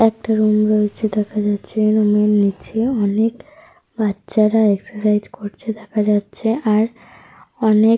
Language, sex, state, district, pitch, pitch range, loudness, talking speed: Bengali, female, Jharkhand, Sahebganj, 215 Hz, 210-225 Hz, -18 LUFS, 130 wpm